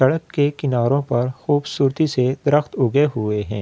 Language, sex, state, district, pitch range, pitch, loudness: Hindi, male, Delhi, New Delhi, 125-145 Hz, 140 Hz, -19 LUFS